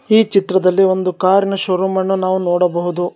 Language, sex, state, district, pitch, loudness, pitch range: Kannada, male, Karnataka, Bangalore, 190 Hz, -15 LUFS, 180-195 Hz